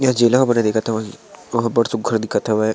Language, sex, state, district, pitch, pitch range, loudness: Chhattisgarhi, male, Chhattisgarh, Sarguja, 115 Hz, 110-120 Hz, -18 LUFS